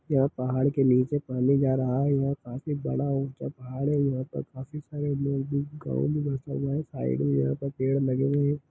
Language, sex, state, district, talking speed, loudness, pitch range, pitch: Hindi, male, Chhattisgarh, Kabirdham, 225 wpm, -27 LUFS, 130-145 Hz, 140 Hz